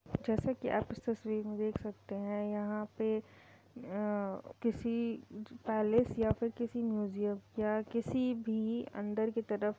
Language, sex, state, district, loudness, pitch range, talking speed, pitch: Hindi, female, Bihar, Purnia, -36 LUFS, 210-230 Hz, 155 wpm, 220 Hz